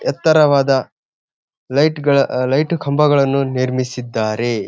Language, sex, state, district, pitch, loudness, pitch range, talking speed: Kannada, male, Karnataka, Gulbarga, 135 Hz, -16 LUFS, 125-145 Hz, 65 wpm